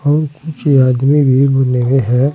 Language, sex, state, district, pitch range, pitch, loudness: Hindi, male, Uttar Pradesh, Saharanpur, 130-145 Hz, 135 Hz, -12 LUFS